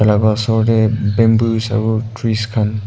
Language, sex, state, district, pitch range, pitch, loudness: Nagamese, male, Nagaland, Kohima, 110-115 Hz, 110 Hz, -15 LUFS